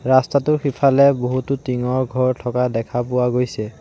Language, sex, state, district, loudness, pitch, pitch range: Assamese, male, Assam, Sonitpur, -19 LUFS, 125 Hz, 125-140 Hz